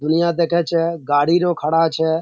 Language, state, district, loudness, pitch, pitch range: Surjapuri, Bihar, Kishanganj, -18 LUFS, 165 Hz, 160-170 Hz